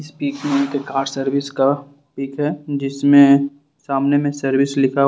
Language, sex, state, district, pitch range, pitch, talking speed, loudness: Hindi, male, Jharkhand, Ranchi, 135-145 Hz, 140 Hz, 165 wpm, -18 LUFS